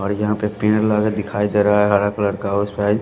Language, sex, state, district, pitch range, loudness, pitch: Hindi, male, Punjab, Fazilka, 100-105 Hz, -18 LUFS, 105 Hz